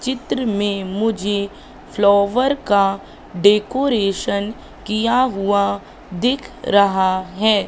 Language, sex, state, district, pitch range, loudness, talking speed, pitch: Hindi, female, Madhya Pradesh, Katni, 200-235 Hz, -18 LUFS, 85 wpm, 205 Hz